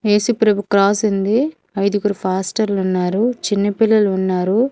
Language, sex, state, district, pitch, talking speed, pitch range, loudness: Telugu, female, Andhra Pradesh, Manyam, 205 Hz, 90 wpm, 195-220 Hz, -17 LUFS